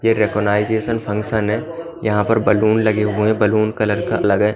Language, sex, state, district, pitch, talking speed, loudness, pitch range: Hindi, male, Bihar, Katihar, 110 Hz, 170 wpm, -17 LUFS, 105-110 Hz